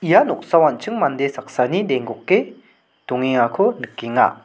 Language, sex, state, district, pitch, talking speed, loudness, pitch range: Garo, male, Meghalaya, South Garo Hills, 130 Hz, 110 wpm, -19 LUFS, 125-140 Hz